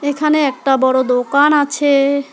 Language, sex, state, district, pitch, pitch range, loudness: Bengali, female, West Bengal, Alipurduar, 280 Hz, 270-290 Hz, -14 LUFS